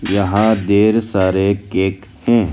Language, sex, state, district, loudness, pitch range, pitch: Hindi, male, Arunachal Pradesh, Lower Dibang Valley, -16 LUFS, 95-110 Hz, 100 Hz